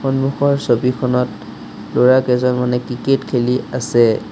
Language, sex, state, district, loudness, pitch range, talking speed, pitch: Assamese, male, Assam, Sonitpur, -16 LUFS, 125-135 Hz, 85 wpm, 125 Hz